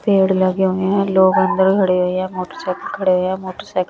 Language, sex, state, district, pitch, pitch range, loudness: Hindi, female, Bihar, West Champaran, 185 Hz, 185-190 Hz, -17 LUFS